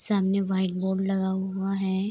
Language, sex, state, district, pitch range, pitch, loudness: Hindi, female, Bihar, Darbhanga, 190-195 Hz, 190 Hz, -27 LUFS